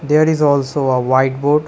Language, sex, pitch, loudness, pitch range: English, male, 145 Hz, -15 LUFS, 130-150 Hz